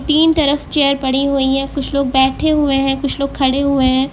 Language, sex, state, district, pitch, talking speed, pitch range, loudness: Hindi, female, Uttar Pradesh, Lucknow, 275 Hz, 230 wpm, 270-285 Hz, -15 LUFS